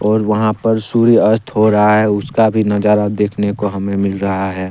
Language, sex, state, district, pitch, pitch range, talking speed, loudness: Hindi, male, Jharkhand, Deoghar, 105 Hz, 100-110 Hz, 205 wpm, -14 LUFS